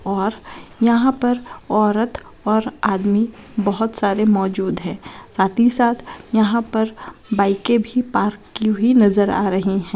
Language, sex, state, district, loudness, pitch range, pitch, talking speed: Hindi, female, Chhattisgarh, Raigarh, -18 LUFS, 200-235 Hz, 215 Hz, 145 wpm